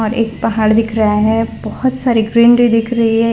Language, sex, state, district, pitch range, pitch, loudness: Hindi, female, Gujarat, Valsad, 220-235 Hz, 225 Hz, -13 LUFS